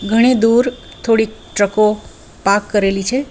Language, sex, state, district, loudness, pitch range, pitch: Gujarati, female, Gujarat, Valsad, -15 LUFS, 205-240 Hz, 220 Hz